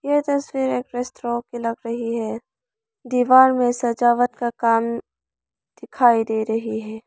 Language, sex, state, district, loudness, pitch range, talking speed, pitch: Hindi, female, Arunachal Pradesh, Lower Dibang Valley, -20 LUFS, 230-260 Hz, 145 wpm, 240 Hz